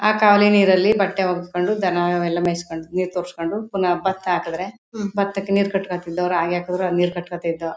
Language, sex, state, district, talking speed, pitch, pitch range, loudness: Kannada, female, Karnataka, Mysore, 170 wpm, 180 Hz, 175-195 Hz, -20 LUFS